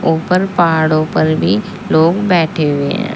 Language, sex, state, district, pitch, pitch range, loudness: Hindi, female, Uttar Pradesh, Saharanpur, 165 Hz, 155-185 Hz, -14 LUFS